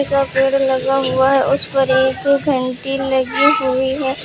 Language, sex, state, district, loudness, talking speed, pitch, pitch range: Hindi, female, Uttar Pradesh, Lucknow, -16 LUFS, 170 wpm, 270 Hz, 260-275 Hz